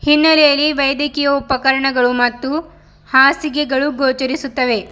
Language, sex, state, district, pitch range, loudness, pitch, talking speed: Kannada, female, Karnataka, Bidar, 265-295 Hz, -15 LUFS, 275 Hz, 75 wpm